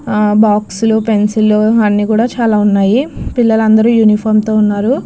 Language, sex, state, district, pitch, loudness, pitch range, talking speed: Telugu, female, Andhra Pradesh, Krishna, 215 Hz, -11 LUFS, 210-225 Hz, 165 wpm